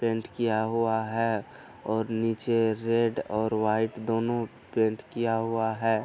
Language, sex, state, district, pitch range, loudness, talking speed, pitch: Hindi, male, Bihar, Araria, 110-115 Hz, -28 LUFS, 140 wpm, 115 Hz